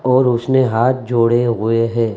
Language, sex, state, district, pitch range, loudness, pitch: Hindi, male, Maharashtra, Mumbai Suburban, 115-130 Hz, -15 LUFS, 120 Hz